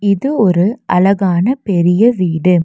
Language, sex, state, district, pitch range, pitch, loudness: Tamil, female, Tamil Nadu, Nilgiris, 180-220 Hz, 195 Hz, -13 LUFS